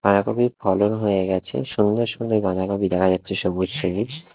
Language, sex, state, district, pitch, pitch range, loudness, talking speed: Bengali, male, Odisha, Khordha, 100 Hz, 95-110 Hz, -22 LUFS, 150 wpm